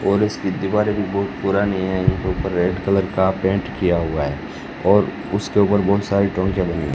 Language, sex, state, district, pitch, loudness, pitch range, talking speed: Hindi, male, Rajasthan, Bikaner, 95 Hz, -20 LUFS, 95-100 Hz, 190 wpm